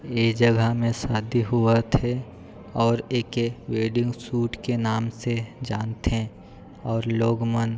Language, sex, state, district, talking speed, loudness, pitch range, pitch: Chhattisgarhi, male, Chhattisgarh, Sarguja, 130 wpm, -24 LUFS, 115-120 Hz, 115 Hz